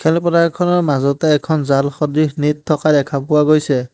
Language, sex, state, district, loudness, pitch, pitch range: Assamese, male, Assam, Hailakandi, -15 LUFS, 150 Hz, 140-160 Hz